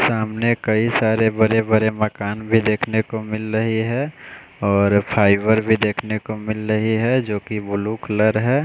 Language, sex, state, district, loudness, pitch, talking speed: Hindi, male, Bihar, West Champaran, -19 LUFS, 110 Hz, 165 wpm